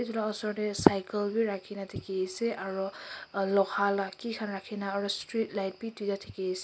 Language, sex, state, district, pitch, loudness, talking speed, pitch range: Nagamese, male, Nagaland, Kohima, 200 Hz, -31 LUFS, 200 wpm, 195-215 Hz